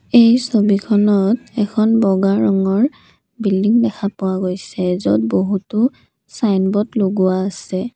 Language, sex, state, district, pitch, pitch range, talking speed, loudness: Assamese, female, Assam, Kamrup Metropolitan, 200 Hz, 190-225 Hz, 105 wpm, -16 LUFS